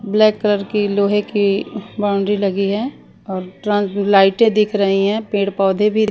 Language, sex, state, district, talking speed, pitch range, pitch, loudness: Hindi, female, Haryana, Charkhi Dadri, 165 wpm, 200-210 Hz, 205 Hz, -17 LUFS